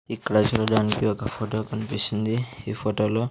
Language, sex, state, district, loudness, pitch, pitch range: Telugu, male, Andhra Pradesh, Sri Satya Sai, -25 LUFS, 110 Hz, 105-110 Hz